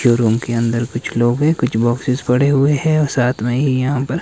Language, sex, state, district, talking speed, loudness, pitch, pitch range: Hindi, male, Himachal Pradesh, Shimla, 270 wpm, -16 LUFS, 125 Hz, 120-140 Hz